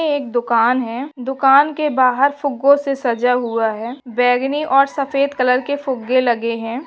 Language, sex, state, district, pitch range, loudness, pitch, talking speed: Hindi, female, West Bengal, Paschim Medinipur, 240-280 Hz, -17 LUFS, 260 Hz, 175 wpm